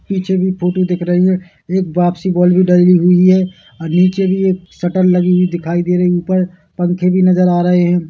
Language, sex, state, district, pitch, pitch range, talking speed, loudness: Hindi, male, Chhattisgarh, Bilaspur, 180 Hz, 175-185 Hz, 235 wpm, -13 LUFS